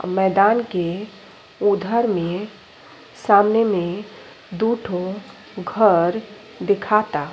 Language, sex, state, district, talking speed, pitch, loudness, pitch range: Bhojpuri, female, Uttar Pradesh, Ghazipur, 75 wpm, 205 Hz, -20 LUFS, 180-215 Hz